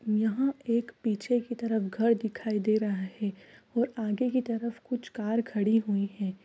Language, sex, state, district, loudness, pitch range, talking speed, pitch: Hindi, female, Bihar, East Champaran, -30 LUFS, 210-235 Hz, 175 wpm, 225 Hz